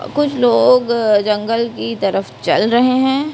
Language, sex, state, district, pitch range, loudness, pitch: Hindi, female, Maharashtra, Mumbai Suburban, 215-255 Hz, -15 LUFS, 235 Hz